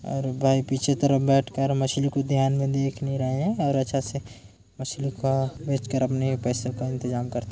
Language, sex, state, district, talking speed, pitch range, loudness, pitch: Hindi, male, Chhattisgarh, Korba, 210 wpm, 130-140 Hz, -25 LUFS, 135 Hz